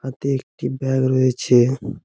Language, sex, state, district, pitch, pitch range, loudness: Bengali, male, West Bengal, Jhargram, 130 Hz, 125-135 Hz, -19 LUFS